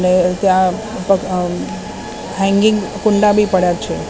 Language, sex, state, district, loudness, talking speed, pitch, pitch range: Gujarati, female, Maharashtra, Mumbai Suburban, -15 LUFS, 115 wpm, 195 Hz, 180-210 Hz